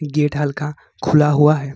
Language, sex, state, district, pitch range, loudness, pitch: Hindi, male, Jharkhand, Ranchi, 145-150 Hz, -17 LUFS, 150 Hz